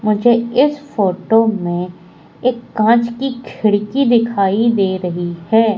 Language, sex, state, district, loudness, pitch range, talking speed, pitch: Hindi, female, Madhya Pradesh, Katni, -16 LUFS, 195-240 Hz, 125 wpm, 225 Hz